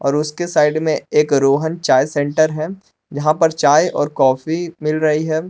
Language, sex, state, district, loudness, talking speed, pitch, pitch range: Hindi, male, Jharkhand, Palamu, -16 LUFS, 175 wpm, 155 Hz, 145-160 Hz